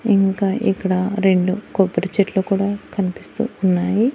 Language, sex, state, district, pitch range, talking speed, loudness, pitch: Telugu, female, Andhra Pradesh, Annamaya, 190-200 Hz, 115 wpm, -19 LUFS, 195 Hz